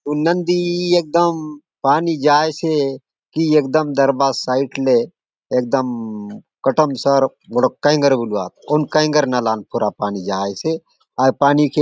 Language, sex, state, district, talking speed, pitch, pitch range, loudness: Halbi, male, Chhattisgarh, Bastar, 130 wpm, 145 Hz, 130-160 Hz, -17 LUFS